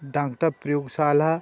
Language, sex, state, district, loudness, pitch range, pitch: Hindi, male, Uttar Pradesh, Budaun, -24 LUFS, 140-155 Hz, 145 Hz